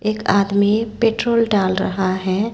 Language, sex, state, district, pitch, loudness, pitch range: Hindi, female, Chhattisgarh, Raipur, 205 Hz, -18 LUFS, 195-225 Hz